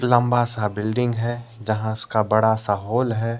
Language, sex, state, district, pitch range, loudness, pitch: Hindi, male, Jharkhand, Deoghar, 110-120 Hz, -21 LUFS, 115 Hz